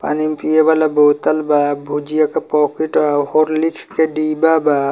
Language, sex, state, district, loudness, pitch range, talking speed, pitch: Bhojpuri, male, Bihar, Muzaffarpur, -15 LUFS, 150-155 Hz, 160 wpm, 155 Hz